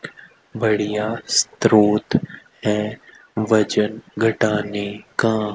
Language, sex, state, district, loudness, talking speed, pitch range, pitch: Hindi, male, Haryana, Rohtak, -20 LUFS, 65 wpm, 105-115 Hz, 110 Hz